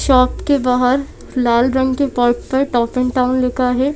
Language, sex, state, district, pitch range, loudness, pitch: Hindi, female, Madhya Pradesh, Bhopal, 250-265 Hz, -16 LUFS, 255 Hz